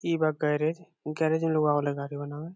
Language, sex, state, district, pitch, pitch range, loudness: Bhojpuri, male, Bihar, Saran, 155 Hz, 145-160 Hz, -28 LUFS